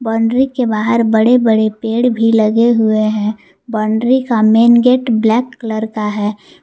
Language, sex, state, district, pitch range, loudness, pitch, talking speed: Hindi, female, Jharkhand, Palamu, 215-235 Hz, -13 LUFS, 225 Hz, 165 wpm